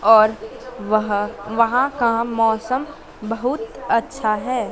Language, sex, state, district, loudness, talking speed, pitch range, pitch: Hindi, female, Madhya Pradesh, Dhar, -20 LUFS, 100 wpm, 215-255 Hz, 230 Hz